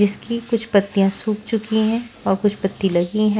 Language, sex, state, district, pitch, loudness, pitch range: Hindi, female, Maharashtra, Washim, 210 Hz, -20 LUFS, 195-225 Hz